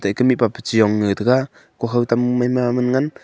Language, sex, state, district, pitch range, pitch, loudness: Wancho, male, Arunachal Pradesh, Longding, 115-125 Hz, 120 Hz, -18 LUFS